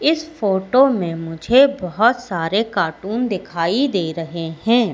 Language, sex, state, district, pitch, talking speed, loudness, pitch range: Hindi, female, Madhya Pradesh, Katni, 200 Hz, 135 wpm, -18 LUFS, 170-245 Hz